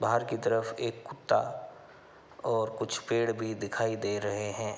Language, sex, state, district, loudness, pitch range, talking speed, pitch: Hindi, male, Uttar Pradesh, Hamirpur, -31 LUFS, 105-115 Hz, 165 wpm, 110 Hz